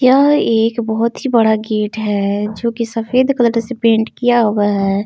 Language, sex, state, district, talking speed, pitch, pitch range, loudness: Hindi, female, Jharkhand, Palamu, 190 wpm, 225 Hz, 215-240 Hz, -15 LUFS